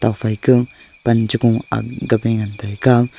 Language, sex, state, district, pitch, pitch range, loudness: Wancho, male, Arunachal Pradesh, Longding, 115 Hz, 110-125 Hz, -17 LUFS